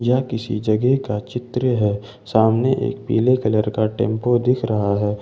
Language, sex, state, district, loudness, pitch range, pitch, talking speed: Hindi, male, Jharkhand, Ranchi, -20 LUFS, 105-125 Hz, 110 Hz, 170 wpm